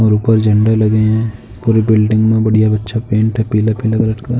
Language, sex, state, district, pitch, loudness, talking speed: Hindi, male, Uttar Pradesh, Jalaun, 110 Hz, -13 LUFS, 215 wpm